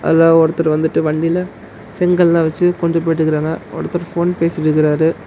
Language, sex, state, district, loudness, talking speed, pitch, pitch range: Tamil, male, Tamil Nadu, Namakkal, -15 LUFS, 125 wpm, 165 Hz, 160-175 Hz